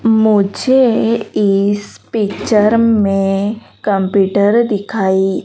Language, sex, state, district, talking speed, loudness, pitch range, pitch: Hindi, female, Madhya Pradesh, Dhar, 65 wpm, -14 LUFS, 195-225 Hz, 205 Hz